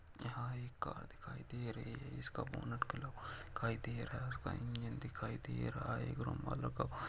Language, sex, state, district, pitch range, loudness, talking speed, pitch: Hindi, male, Jharkhand, Jamtara, 115-125 Hz, -44 LUFS, 175 wpm, 120 Hz